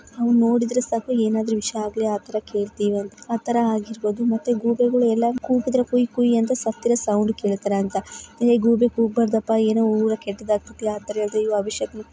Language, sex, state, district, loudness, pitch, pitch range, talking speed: Kannada, female, Karnataka, Bijapur, -21 LUFS, 225 Hz, 215-235 Hz, 165 wpm